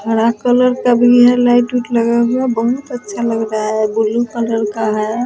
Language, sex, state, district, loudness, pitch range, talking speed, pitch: Hindi, female, Bihar, Vaishali, -14 LUFS, 225-245 Hz, 205 wpm, 235 Hz